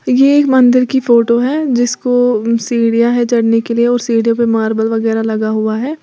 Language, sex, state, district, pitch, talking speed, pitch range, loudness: Hindi, female, Uttar Pradesh, Lalitpur, 235 Hz, 200 wpm, 225-250 Hz, -12 LUFS